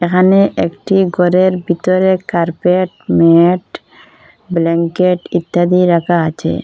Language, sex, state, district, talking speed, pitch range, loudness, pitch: Bengali, female, Assam, Hailakandi, 90 wpm, 170-185 Hz, -13 LUFS, 180 Hz